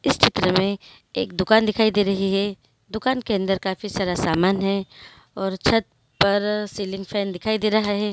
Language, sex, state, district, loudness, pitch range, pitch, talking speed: Hindi, female, Maharashtra, Dhule, -22 LUFS, 190-210 Hz, 195 Hz, 185 wpm